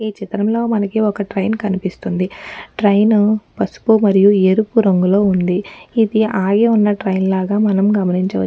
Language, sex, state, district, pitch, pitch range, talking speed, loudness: Telugu, female, Telangana, Nalgonda, 205 Hz, 190-215 Hz, 135 wpm, -15 LUFS